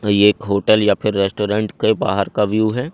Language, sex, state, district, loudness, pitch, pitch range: Hindi, male, Madhya Pradesh, Katni, -17 LUFS, 105 Hz, 105-110 Hz